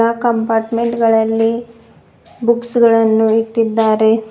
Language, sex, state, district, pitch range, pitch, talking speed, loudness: Kannada, female, Karnataka, Bidar, 225-235 Hz, 230 Hz, 70 wpm, -14 LUFS